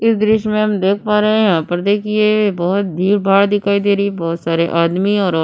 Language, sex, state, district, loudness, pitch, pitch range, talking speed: Hindi, female, Uttar Pradesh, Budaun, -15 LUFS, 200 Hz, 175-210 Hz, 255 wpm